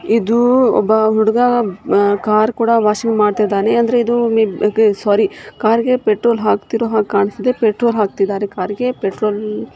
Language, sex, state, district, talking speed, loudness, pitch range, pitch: Kannada, female, Karnataka, Shimoga, 125 wpm, -15 LUFS, 210-235 Hz, 220 Hz